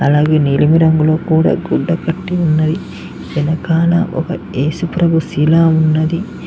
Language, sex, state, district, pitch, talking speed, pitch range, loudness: Telugu, male, Telangana, Mahabubabad, 160 Hz, 110 wpm, 155-170 Hz, -14 LUFS